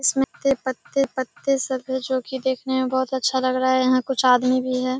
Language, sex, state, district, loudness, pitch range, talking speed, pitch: Hindi, female, Bihar, Kishanganj, -22 LUFS, 255-265 Hz, 225 wpm, 260 Hz